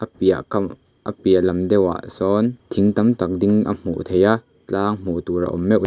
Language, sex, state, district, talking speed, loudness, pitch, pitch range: Mizo, male, Mizoram, Aizawl, 215 wpm, -20 LUFS, 100 Hz, 90-105 Hz